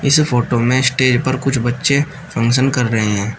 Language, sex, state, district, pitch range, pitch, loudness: Hindi, male, Uttar Pradesh, Shamli, 120-135 Hz, 130 Hz, -15 LUFS